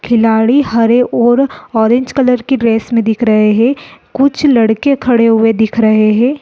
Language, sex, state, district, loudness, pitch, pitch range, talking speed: Hindi, female, Chhattisgarh, Balrampur, -11 LUFS, 235 Hz, 225-260 Hz, 170 wpm